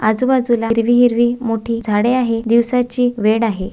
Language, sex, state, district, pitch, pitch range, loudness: Marathi, female, Maharashtra, Dhule, 235 Hz, 225-245 Hz, -16 LUFS